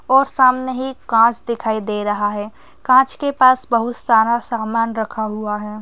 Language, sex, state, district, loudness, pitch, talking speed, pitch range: Hindi, female, Rajasthan, Nagaur, -17 LUFS, 230 Hz, 175 wpm, 215-255 Hz